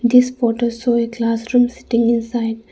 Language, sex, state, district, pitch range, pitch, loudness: English, female, Arunachal Pradesh, Lower Dibang Valley, 230-245 Hz, 235 Hz, -18 LUFS